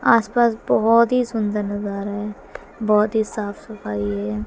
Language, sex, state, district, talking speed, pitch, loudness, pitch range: Hindi, female, Haryana, Jhajjar, 145 wpm, 210 Hz, -20 LUFS, 205-230 Hz